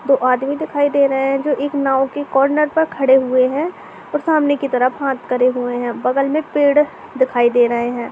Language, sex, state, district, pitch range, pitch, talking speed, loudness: Hindi, female, Uttar Pradesh, Etah, 255-290 Hz, 275 Hz, 220 wpm, -17 LUFS